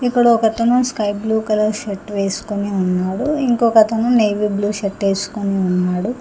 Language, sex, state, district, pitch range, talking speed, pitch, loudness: Telugu, female, Telangana, Hyderabad, 200-230 Hz, 135 wpm, 210 Hz, -17 LUFS